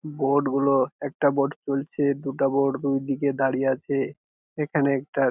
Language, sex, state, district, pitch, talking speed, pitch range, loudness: Bengali, male, West Bengal, Jhargram, 140 Hz, 160 wpm, 135-140 Hz, -24 LUFS